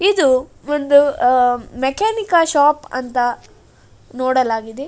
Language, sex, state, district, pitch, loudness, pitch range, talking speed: Kannada, female, Karnataka, Dakshina Kannada, 265 Hz, -16 LUFS, 250-295 Hz, 85 wpm